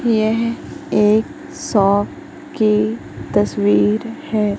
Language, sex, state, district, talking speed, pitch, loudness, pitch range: Hindi, female, Madhya Pradesh, Katni, 80 wpm, 215 Hz, -17 LUFS, 205-235 Hz